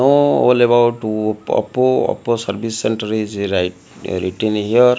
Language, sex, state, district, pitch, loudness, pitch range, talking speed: English, male, Odisha, Malkangiri, 110 Hz, -17 LUFS, 105-120 Hz, 130 wpm